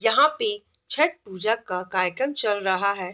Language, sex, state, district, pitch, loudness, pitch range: Hindi, female, Bihar, East Champaran, 215 Hz, -24 LUFS, 190-290 Hz